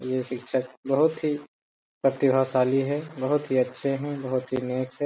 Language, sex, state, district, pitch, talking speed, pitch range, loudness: Hindi, male, Jharkhand, Jamtara, 130 Hz, 165 wpm, 130-145 Hz, -26 LUFS